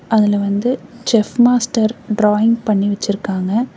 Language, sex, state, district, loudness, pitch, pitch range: Tamil, female, Tamil Nadu, Namakkal, -16 LUFS, 215 Hz, 205-235 Hz